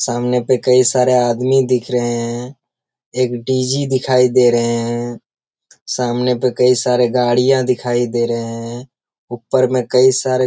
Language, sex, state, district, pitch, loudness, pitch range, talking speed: Hindi, male, Bihar, Jamui, 125 Hz, -15 LUFS, 120-130 Hz, 160 wpm